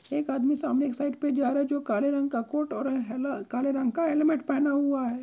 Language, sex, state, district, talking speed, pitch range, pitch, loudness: Hindi, male, Uttar Pradesh, Jyotiba Phule Nagar, 275 wpm, 260-285 Hz, 280 Hz, -27 LUFS